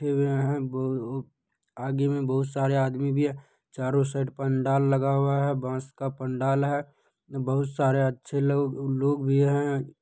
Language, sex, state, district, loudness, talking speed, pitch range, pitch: Hindi, male, Bihar, Purnia, -26 LUFS, 145 wpm, 135-140 Hz, 135 Hz